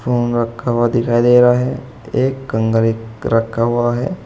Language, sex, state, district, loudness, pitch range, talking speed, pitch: Hindi, male, Uttar Pradesh, Saharanpur, -16 LUFS, 115-125 Hz, 170 wpm, 120 Hz